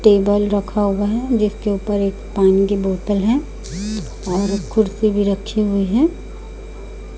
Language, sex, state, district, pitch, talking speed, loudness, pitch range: Hindi, female, Chhattisgarh, Raipur, 205 Hz, 140 wpm, -18 LUFS, 200-215 Hz